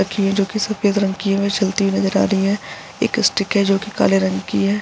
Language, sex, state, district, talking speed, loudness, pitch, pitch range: Hindi, female, Bihar, Araria, 300 wpm, -18 LUFS, 195 Hz, 195-200 Hz